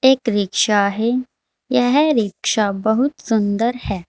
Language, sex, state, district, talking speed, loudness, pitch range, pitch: Hindi, female, Uttar Pradesh, Saharanpur, 115 wpm, -18 LUFS, 205-255 Hz, 225 Hz